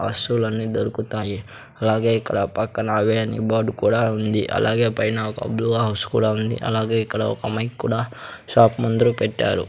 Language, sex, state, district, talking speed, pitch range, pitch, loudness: Telugu, male, Andhra Pradesh, Sri Satya Sai, 155 wpm, 110-115 Hz, 110 Hz, -21 LUFS